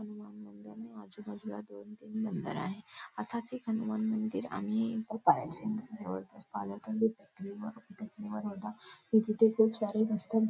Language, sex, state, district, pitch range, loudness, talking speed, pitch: Marathi, female, Maharashtra, Nagpur, 170-220 Hz, -34 LUFS, 95 wpm, 215 Hz